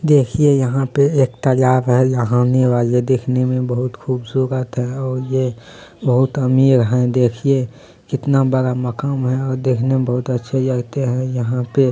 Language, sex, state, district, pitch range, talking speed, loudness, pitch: Hindi, male, Bihar, Kishanganj, 125-135 Hz, 155 wpm, -17 LUFS, 130 Hz